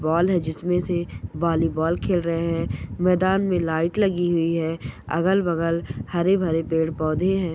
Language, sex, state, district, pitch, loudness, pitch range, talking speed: Hindi, female, Goa, North and South Goa, 170 Hz, -23 LUFS, 160-180 Hz, 160 wpm